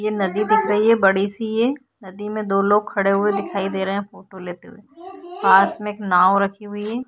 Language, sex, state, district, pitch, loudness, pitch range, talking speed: Hindi, female, Bihar, Vaishali, 205 Hz, -19 LUFS, 195-220 Hz, 245 wpm